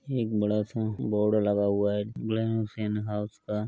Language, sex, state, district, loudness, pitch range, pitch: Hindi, male, Uttar Pradesh, Etah, -28 LUFS, 105-110 Hz, 105 Hz